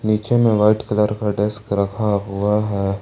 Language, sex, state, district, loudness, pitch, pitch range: Hindi, male, Jharkhand, Ranchi, -19 LUFS, 105 Hz, 100-110 Hz